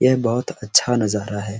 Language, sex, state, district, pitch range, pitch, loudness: Hindi, male, Bihar, Araria, 105-125 Hz, 115 Hz, -20 LUFS